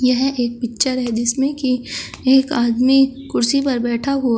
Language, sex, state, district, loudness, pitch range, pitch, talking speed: Hindi, male, Uttar Pradesh, Shamli, -18 LUFS, 240-270 Hz, 255 Hz, 180 wpm